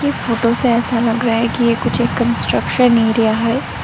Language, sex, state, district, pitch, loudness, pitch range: Hindi, female, Arunachal Pradesh, Lower Dibang Valley, 235 Hz, -15 LUFS, 230-240 Hz